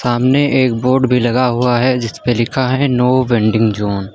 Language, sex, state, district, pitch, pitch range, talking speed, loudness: Hindi, male, Uttar Pradesh, Lucknow, 125 Hz, 115-130 Hz, 215 wpm, -14 LUFS